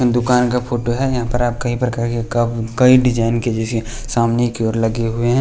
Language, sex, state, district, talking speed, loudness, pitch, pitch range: Hindi, male, Bihar, West Champaran, 235 wpm, -17 LUFS, 120 Hz, 115-125 Hz